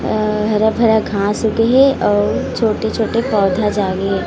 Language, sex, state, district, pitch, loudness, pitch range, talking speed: Chhattisgarhi, female, Chhattisgarh, Rajnandgaon, 215 Hz, -15 LUFS, 205-225 Hz, 140 wpm